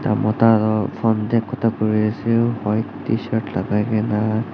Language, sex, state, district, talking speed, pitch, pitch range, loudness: Nagamese, male, Nagaland, Dimapur, 160 wpm, 110 Hz, 105-115 Hz, -20 LUFS